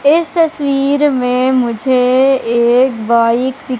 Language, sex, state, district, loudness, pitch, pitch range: Hindi, female, Madhya Pradesh, Katni, -13 LUFS, 260 Hz, 245-280 Hz